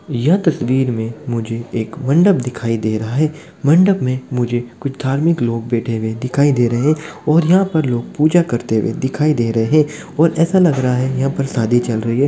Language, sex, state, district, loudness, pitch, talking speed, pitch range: Hindi, male, Bihar, Muzaffarpur, -16 LUFS, 130 Hz, 215 wpm, 120-155 Hz